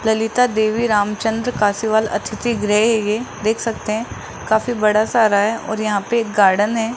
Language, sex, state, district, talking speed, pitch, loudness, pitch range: Hindi, male, Rajasthan, Jaipur, 180 wpm, 220 Hz, -18 LUFS, 210-230 Hz